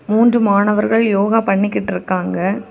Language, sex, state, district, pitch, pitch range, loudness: Tamil, female, Tamil Nadu, Kanyakumari, 210 Hz, 200-225 Hz, -15 LUFS